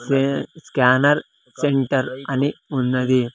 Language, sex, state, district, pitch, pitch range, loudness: Telugu, male, Andhra Pradesh, Sri Satya Sai, 135 Hz, 130-140 Hz, -20 LUFS